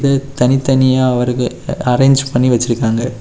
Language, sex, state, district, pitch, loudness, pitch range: Tamil, male, Tamil Nadu, Kanyakumari, 125 Hz, -14 LUFS, 125-135 Hz